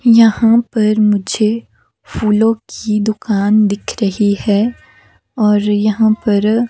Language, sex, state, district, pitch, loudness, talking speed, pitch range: Hindi, female, Himachal Pradesh, Shimla, 215 Hz, -14 LUFS, 105 wpm, 210-225 Hz